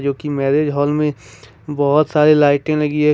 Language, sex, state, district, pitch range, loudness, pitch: Hindi, male, Jharkhand, Ranchi, 140-150 Hz, -16 LUFS, 145 Hz